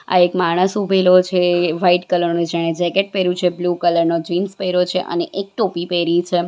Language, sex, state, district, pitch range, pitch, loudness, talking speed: Gujarati, female, Gujarat, Valsad, 170-185 Hz, 180 Hz, -17 LUFS, 215 wpm